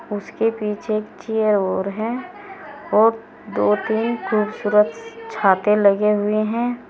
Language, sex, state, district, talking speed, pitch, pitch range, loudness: Hindi, female, Uttar Pradesh, Saharanpur, 120 wpm, 215 Hz, 210-230 Hz, -20 LUFS